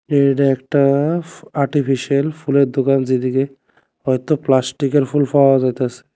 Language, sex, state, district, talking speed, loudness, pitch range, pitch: Bengali, male, Tripura, West Tripura, 105 wpm, -17 LUFS, 130-145 Hz, 140 Hz